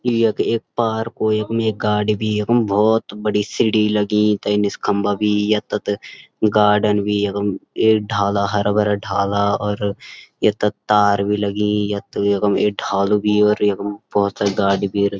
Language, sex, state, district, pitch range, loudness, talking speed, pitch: Garhwali, male, Uttarakhand, Uttarkashi, 100-105 Hz, -18 LUFS, 175 wpm, 105 Hz